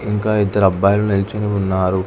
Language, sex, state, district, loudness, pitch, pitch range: Telugu, male, Telangana, Hyderabad, -17 LUFS, 100 Hz, 95-105 Hz